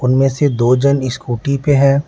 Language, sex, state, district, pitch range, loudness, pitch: Hindi, male, Bihar, Patna, 125-140 Hz, -15 LUFS, 135 Hz